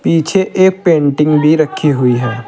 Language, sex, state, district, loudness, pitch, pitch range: Hindi, male, Uttar Pradesh, Saharanpur, -12 LUFS, 155 Hz, 145-175 Hz